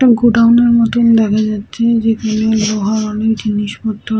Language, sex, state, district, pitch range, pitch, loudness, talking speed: Bengali, female, West Bengal, Purulia, 215-230 Hz, 220 Hz, -13 LUFS, 145 wpm